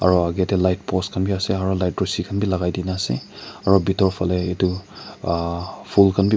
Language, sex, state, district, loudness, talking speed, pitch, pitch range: Nagamese, male, Nagaland, Kohima, -21 LUFS, 190 wpm, 95 Hz, 90-95 Hz